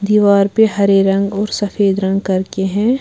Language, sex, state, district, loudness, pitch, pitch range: Hindi, female, Bihar, West Champaran, -14 LUFS, 200 Hz, 195-205 Hz